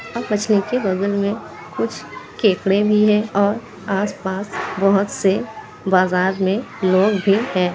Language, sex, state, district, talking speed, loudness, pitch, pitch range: Hindi, female, Bihar, Kishanganj, 140 wpm, -19 LUFS, 200 Hz, 190-210 Hz